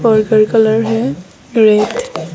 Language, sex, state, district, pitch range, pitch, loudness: Hindi, female, Arunachal Pradesh, Longding, 210-225 Hz, 215 Hz, -13 LUFS